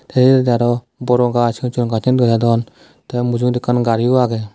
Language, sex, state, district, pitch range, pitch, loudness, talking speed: Chakma, male, Tripura, Dhalai, 120-125 Hz, 120 Hz, -16 LUFS, 170 wpm